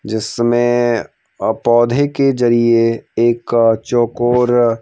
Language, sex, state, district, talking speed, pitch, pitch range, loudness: Hindi, male, Madhya Pradesh, Bhopal, 100 wpm, 120 Hz, 115-120 Hz, -15 LUFS